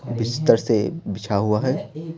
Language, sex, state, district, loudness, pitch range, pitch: Hindi, male, Bihar, Patna, -22 LUFS, 105-140 Hz, 115 Hz